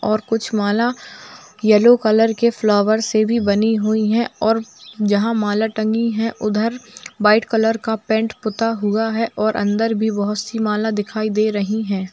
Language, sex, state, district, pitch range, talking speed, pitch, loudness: Hindi, female, Bihar, Jamui, 210-225 Hz, 175 wpm, 220 Hz, -18 LUFS